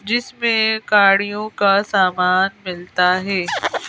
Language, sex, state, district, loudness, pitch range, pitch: Hindi, female, Madhya Pradesh, Bhopal, -17 LUFS, 185-215 Hz, 195 Hz